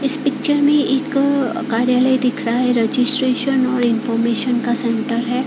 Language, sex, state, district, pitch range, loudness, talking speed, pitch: Hindi, female, Odisha, Khordha, 240-275 Hz, -17 LUFS, 165 wpm, 255 Hz